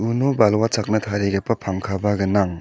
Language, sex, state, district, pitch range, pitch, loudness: Garo, male, Meghalaya, South Garo Hills, 100-110 Hz, 105 Hz, -20 LUFS